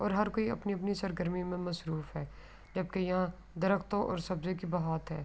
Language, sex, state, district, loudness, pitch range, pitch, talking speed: Urdu, female, Andhra Pradesh, Anantapur, -35 LUFS, 170-195 Hz, 180 Hz, 195 wpm